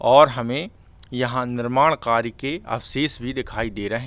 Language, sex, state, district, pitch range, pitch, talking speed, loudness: Hindi, male, Jharkhand, Sahebganj, 115-130 Hz, 120 Hz, 175 wpm, -22 LUFS